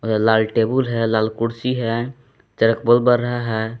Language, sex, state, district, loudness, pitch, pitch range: Hindi, male, Jharkhand, Palamu, -19 LUFS, 115 Hz, 110-120 Hz